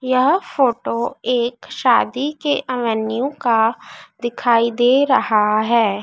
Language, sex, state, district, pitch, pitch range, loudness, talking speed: Hindi, female, Madhya Pradesh, Dhar, 240 Hz, 230-265 Hz, -18 LUFS, 100 wpm